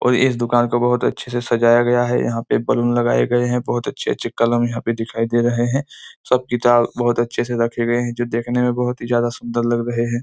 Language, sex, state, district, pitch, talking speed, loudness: Hindi, male, Chhattisgarh, Korba, 120 Hz, 250 wpm, -19 LUFS